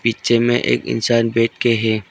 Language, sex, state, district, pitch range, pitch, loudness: Hindi, male, Arunachal Pradesh, Longding, 110-115 Hz, 115 Hz, -17 LUFS